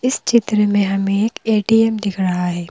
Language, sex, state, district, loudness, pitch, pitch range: Hindi, female, Madhya Pradesh, Bhopal, -17 LUFS, 210 Hz, 195-225 Hz